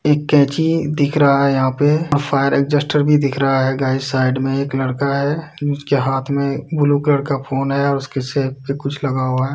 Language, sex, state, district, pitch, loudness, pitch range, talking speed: Hindi, male, Uttar Pradesh, Deoria, 140 Hz, -17 LUFS, 135-145 Hz, 225 wpm